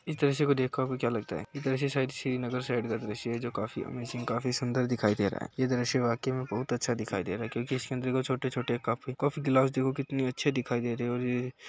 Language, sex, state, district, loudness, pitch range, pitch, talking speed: Hindi, male, Bihar, Begusarai, -31 LUFS, 120-130 Hz, 125 Hz, 265 wpm